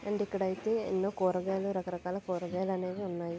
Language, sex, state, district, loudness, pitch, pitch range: Telugu, female, Andhra Pradesh, Visakhapatnam, -34 LUFS, 190 Hz, 180-195 Hz